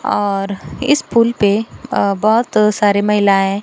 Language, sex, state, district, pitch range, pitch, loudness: Hindi, female, Bihar, Kaimur, 200-225 Hz, 205 Hz, -15 LUFS